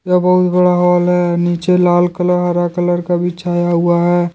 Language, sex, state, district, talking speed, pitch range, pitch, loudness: Hindi, male, Jharkhand, Deoghar, 205 wpm, 175-180 Hz, 175 Hz, -14 LUFS